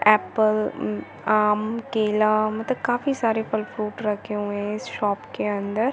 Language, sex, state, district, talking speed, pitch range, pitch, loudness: Hindi, female, Chhattisgarh, Bastar, 170 wpm, 210-220 Hz, 215 Hz, -24 LUFS